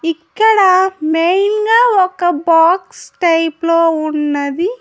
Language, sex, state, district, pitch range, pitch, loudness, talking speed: Telugu, female, Andhra Pradesh, Annamaya, 325-385 Hz, 340 Hz, -13 LUFS, 100 wpm